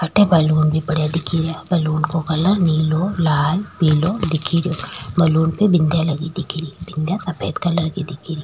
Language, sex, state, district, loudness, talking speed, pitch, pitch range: Rajasthani, female, Rajasthan, Churu, -18 LUFS, 185 wpm, 160 Hz, 155-175 Hz